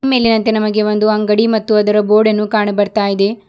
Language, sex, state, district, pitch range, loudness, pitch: Kannada, female, Karnataka, Bidar, 210-220 Hz, -13 LUFS, 215 Hz